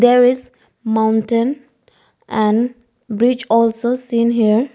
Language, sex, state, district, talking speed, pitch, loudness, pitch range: English, female, Arunachal Pradesh, Lower Dibang Valley, 100 wpm, 235 Hz, -16 LUFS, 220-245 Hz